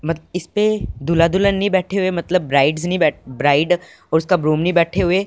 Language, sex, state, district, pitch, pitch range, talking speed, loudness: Hindi, male, Punjab, Fazilka, 175 Hz, 160-185 Hz, 240 wpm, -18 LUFS